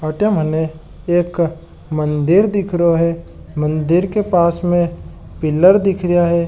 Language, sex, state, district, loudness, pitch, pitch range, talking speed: Marwari, male, Rajasthan, Nagaur, -16 LUFS, 170 Hz, 155-175 Hz, 130 wpm